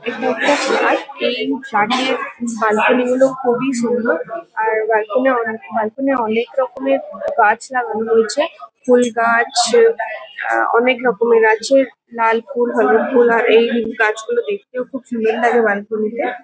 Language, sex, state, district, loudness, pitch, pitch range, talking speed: Bengali, female, West Bengal, Kolkata, -16 LUFS, 240 Hz, 225-260 Hz, 140 wpm